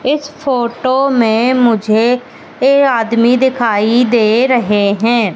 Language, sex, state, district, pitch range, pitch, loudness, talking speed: Hindi, female, Madhya Pradesh, Katni, 225-260 Hz, 240 Hz, -12 LUFS, 110 wpm